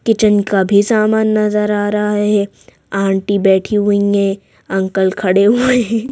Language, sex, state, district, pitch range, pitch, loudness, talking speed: Hindi, female, Madhya Pradesh, Bhopal, 195-215 Hz, 205 Hz, -14 LUFS, 155 wpm